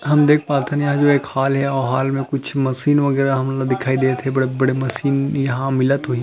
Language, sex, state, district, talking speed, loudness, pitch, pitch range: Chhattisgarhi, male, Chhattisgarh, Rajnandgaon, 260 wpm, -18 LUFS, 135 Hz, 130-140 Hz